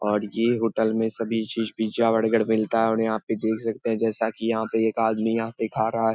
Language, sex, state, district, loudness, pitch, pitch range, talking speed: Hindi, male, Bihar, Lakhisarai, -24 LUFS, 110 Hz, 110-115 Hz, 245 wpm